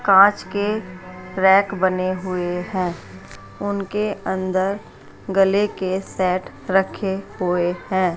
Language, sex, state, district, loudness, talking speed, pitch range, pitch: Hindi, female, Rajasthan, Jaipur, -21 LUFS, 105 wpm, 180-195 Hz, 190 Hz